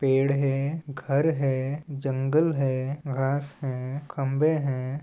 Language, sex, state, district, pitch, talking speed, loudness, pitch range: Chhattisgarhi, male, Chhattisgarh, Balrampur, 140 Hz, 120 wpm, -26 LUFS, 135-145 Hz